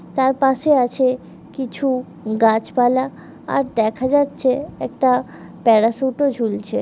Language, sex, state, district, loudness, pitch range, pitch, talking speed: Bengali, female, West Bengal, Kolkata, -19 LUFS, 230-270 Hz, 255 Hz, 105 wpm